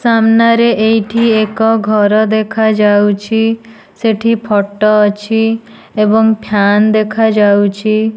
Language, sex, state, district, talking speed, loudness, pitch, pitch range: Odia, female, Odisha, Nuapada, 80 wpm, -11 LUFS, 220 Hz, 210-225 Hz